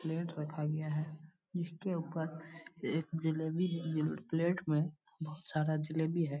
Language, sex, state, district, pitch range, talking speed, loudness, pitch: Hindi, male, Bihar, Purnia, 155-170 Hz, 150 wpm, -37 LUFS, 160 Hz